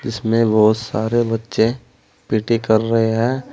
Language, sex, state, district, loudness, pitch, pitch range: Hindi, male, Uttar Pradesh, Saharanpur, -18 LUFS, 115 Hz, 110-115 Hz